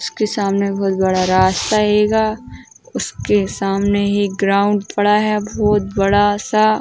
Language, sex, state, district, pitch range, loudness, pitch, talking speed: Hindi, female, Uttar Pradesh, Ghazipur, 195-210 Hz, -16 LUFS, 205 Hz, 150 wpm